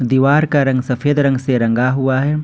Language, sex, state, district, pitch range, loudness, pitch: Hindi, male, Jharkhand, Ranchi, 125-145 Hz, -15 LUFS, 135 Hz